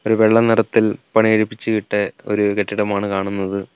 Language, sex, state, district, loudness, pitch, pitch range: Malayalam, male, Kerala, Kollam, -18 LUFS, 105 Hz, 100-110 Hz